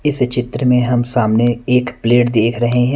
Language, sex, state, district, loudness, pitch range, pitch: Hindi, male, Punjab, Kapurthala, -15 LUFS, 120-125 Hz, 125 Hz